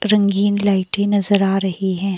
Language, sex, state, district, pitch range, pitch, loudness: Hindi, female, Himachal Pradesh, Shimla, 195-205 Hz, 200 Hz, -17 LUFS